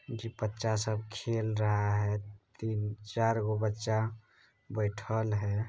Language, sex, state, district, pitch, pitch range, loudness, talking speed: Hindi, male, Bihar, Supaul, 110 Hz, 105-110 Hz, -33 LUFS, 125 wpm